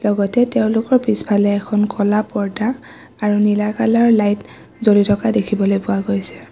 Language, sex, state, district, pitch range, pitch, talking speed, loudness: Assamese, female, Assam, Kamrup Metropolitan, 205-220 Hz, 210 Hz, 145 wpm, -16 LUFS